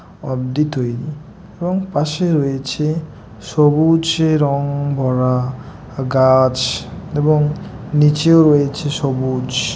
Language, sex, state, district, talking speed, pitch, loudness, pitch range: Bengali, male, West Bengal, Dakshin Dinajpur, 80 wpm, 145 Hz, -17 LUFS, 130-155 Hz